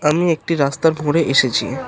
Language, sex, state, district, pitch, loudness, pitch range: Bengali, male, West Bengal, Cooch Behar, 155 Hz, -17 LUFS, 140-165 Hz